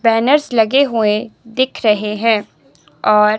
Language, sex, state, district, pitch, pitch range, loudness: Hindi, male, Himachal Pradesh, Shimla, 220 Hz, 210-235 Hz, -15 LUFS